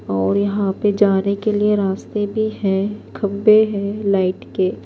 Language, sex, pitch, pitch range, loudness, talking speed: Urdu, female, 200 Hz, 195-210 Hz, -18 LUFS, 160 wpm